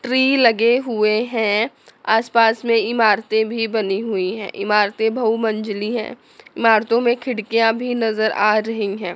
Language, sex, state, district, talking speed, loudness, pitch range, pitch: Hindi, female, Chandigarh, Chandigarh, 155 wpm, -18 LUFS, 215-235 Hz, 225 Hz